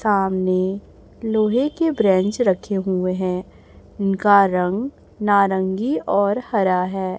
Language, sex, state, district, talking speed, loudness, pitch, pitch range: Hindi, male, Chhattisgarh, Raipur, 110 wpm, -19 LUFS, 195 Hz, 185-210 Hz